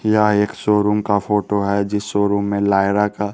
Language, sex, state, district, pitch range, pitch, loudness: Hindi, male, Bihar, West Champaran, 100-105 Hz, 105 Hz, -18 LUFS